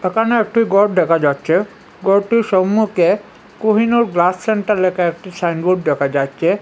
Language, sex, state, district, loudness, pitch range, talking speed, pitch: Bengali, male, Assam, Hailakandi, -16 LUFS, 175-220 Hz, 135 wpm, 190 Hz